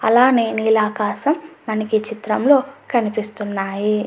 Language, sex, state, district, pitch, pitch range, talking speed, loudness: Telugu, female, Andhra Pradesh, Anantapur, 220 Hz, 210-245 Hz, 90 wpm, -19 LUFS